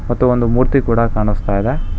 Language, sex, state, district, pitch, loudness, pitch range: Kannada, male, Karnataka, Bangalore, 115 Hz, -16 LUFS, 100-125 Hz